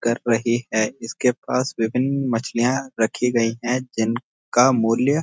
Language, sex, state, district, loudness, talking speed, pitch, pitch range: Hindi, male, Uttarakhand, Uttarkashi, -21 LUFS, 160 wpm, 120 Hz, 115-125 Hz